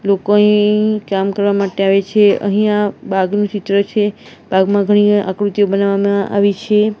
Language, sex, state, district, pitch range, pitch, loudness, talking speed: Gujarati, female, Gujarat, Valsad, 200-210 Hz, 205 Hz, -14 LUFS, 145 wpm